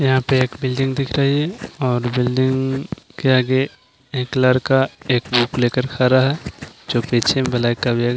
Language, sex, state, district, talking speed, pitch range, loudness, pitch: Hindi, male, Maharashtra, Aurangabad, 155 wpm, 125-135 Hz, -19 LUFS, 130 Hz